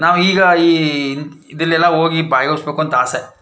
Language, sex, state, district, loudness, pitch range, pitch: Kannada, male, Karnataka, Chamarajanagar, -14 LUFS, 145-170 Hz, 155 Hz